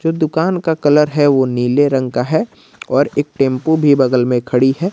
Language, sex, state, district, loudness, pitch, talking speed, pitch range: Hindi, male, Jharkhand, Garhwa, -14 LUFS, 145 Hz, 205 wpm, 130-160 Hz